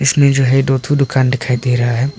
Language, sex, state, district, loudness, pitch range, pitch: Hindi, male, Arunachal Pradesh, Papum Pare, -14 LUFS, 125-140 Hz, 135 Hz